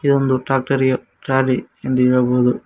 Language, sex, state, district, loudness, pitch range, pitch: Kannada, male, Karnataka, Koppal, -18 LUFS, 125-135 Hz, 130 Hz